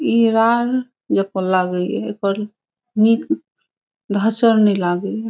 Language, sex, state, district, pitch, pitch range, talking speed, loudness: Maithili, female, Bihar, Saharsa, 220 Hz, 195-230 Hz, 100 wpm, -18 LUFS